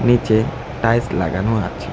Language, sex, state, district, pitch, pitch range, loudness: Bengali, female, West Bengal, Cooch Behar, 110 Hz, 95-120 Hz, -19 LUFS